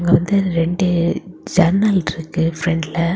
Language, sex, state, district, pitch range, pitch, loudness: Tamil, female, Tamil Nadu, Kanyakumari, 165-185 Hz, 170 Hz, -18 LUFS